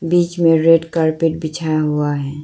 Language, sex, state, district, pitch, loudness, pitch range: Hindi, female, Arunachal Pradesh, Lower Dibang Valley, 160 Hz, -16 LUFS, 155-165 Hz